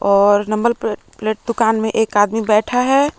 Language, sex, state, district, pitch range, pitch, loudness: Hindi, female, Jharkhand, Palamu, 210-235 Hz, 220 Hz, -16 LUFS